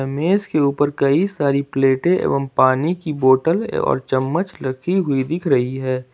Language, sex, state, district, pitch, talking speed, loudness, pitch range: Hindi, male, Jharkhand, Ranchi, 140 Hz, 165 wpm, -18 LUFS, 130-170 Hz